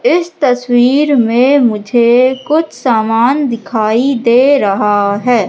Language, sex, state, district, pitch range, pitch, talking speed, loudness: Hindi, female, Madhya Pradesh, Katni, 225-270 Hz, 245 Hz, 110 wpm, -11 LUFS